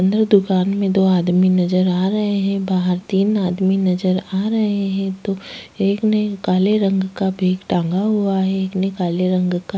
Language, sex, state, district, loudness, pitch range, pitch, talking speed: Hindi, female, Uttarakhand, Tehri Garhwal, -18 LUFS, 185-200 Hz, 190 Hz, 195 wpm